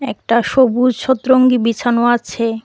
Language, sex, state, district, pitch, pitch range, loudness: Bengali, female, Tripura, West Tripura, 240 Hz, 235-255 Hz, -14 LUFS